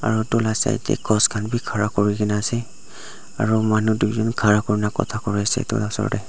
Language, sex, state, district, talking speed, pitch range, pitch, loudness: Nagamese, male, Nagaland, Dimapur, 210 wpm, 105-115 Hz, 110 Hz, -21 LUFS